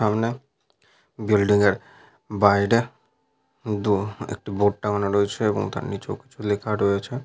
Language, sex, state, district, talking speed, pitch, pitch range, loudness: Bengali, male, Jharkhand, Sahebganj, 125 wpm, 105 Hz, 100-110 Hz, -23 LUFS